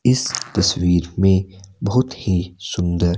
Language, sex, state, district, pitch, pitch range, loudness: Hindi, male, Himachal Pradesh, Shimla, 95 Hz, 90-100 Hz, -19 LUFS